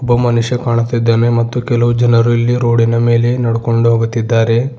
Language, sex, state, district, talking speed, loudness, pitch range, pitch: Kannada, male, Karnataka, Bidar, 140 wpm, -13 LUFS, 115-120 Hz, 120 Hz